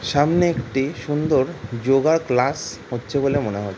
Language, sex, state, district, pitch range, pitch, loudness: Bengali, male, West Bengal, Jhargram, 120-150 Hz, 135 Hz, -21 LUFS